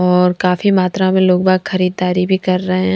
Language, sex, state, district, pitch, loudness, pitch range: Hindi, female, Punjab, Fazilka, 185 Hz, -14 LUFS, 180-185 Hz